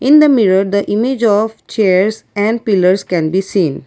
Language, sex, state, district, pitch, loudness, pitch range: English, female, Assam, Kamrup Metropolitan, 205 Hz, -13 LUFS, 190-220 Hz